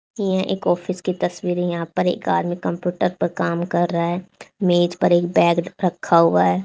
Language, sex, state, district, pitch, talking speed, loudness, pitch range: Hindi, female, Haryana, Charkhi Dadri, 175 Hz, 210 wpm, -20 LUFS, 170-180 Hz